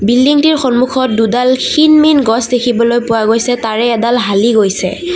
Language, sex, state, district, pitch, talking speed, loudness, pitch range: Assamese, female, Assam, Kamrup Metropolitan, 240 Hz, 150 wpm, -11 LUFS, 225-255 Hz